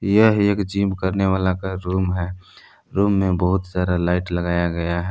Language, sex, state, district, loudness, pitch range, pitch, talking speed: Hindi, male, Jharkhand, Palamu, -21 LUFS, 90-95 Hz, 95 Hz, 185 wpm